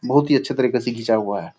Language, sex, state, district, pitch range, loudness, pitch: Angika, male, Bihar, Purnia, 110-135 Hz, -20 LUFS, 125 Hz